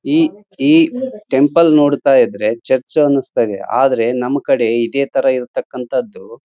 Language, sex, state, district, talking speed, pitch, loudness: Kannada, male, Karnataka, Raichur, 110 wpm, 145 Hz, -15 LUFS